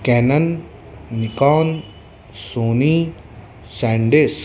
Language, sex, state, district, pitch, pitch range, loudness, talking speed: Hindi, male, Madhya Pradesh, Dhar, 120 Hz, 110-150 Hz, -18 LUFS, 65 wpm